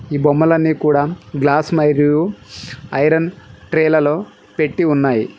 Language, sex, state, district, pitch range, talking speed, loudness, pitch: Telugu, male, Telangana, Mahabubabad, 145-160 Hz, 100 wpm, -16 LUFS, 150 Hz